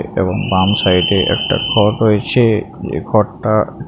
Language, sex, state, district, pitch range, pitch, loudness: Bengali, male, West Bengal, Paschim Medinipur, 95-110 Hz, 105 Hz, -14 LUFS